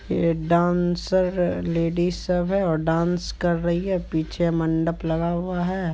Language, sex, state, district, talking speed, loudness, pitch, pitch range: Hindi, male, Bihar, Supaul, 150 wpm, -23 LUFS, 170 Hz, 165-180 Hz